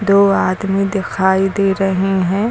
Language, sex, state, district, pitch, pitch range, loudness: Hindi, female, Uttar Pradesh, Lucknow, 195 Hz, 190-200 Hz, -15 LUFS